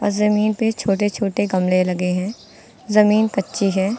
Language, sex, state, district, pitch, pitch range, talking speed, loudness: Hindi, female, Uttar Pradesh, Lucknow, 205 Hz, 190-215 Hz, 150 wpm, -19 LUFS